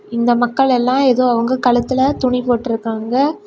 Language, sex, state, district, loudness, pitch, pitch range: Tamil, female, Tamil Nadu, Kanyakumari, -16 LUFS, 250 Hz, 240-260 Hz